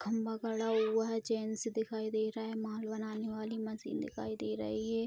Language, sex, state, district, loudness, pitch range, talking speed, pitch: Hindi, female, Bihar, Vaishali, -37 LUFS, 220-225 Hz, 200 wpm, 220 Hz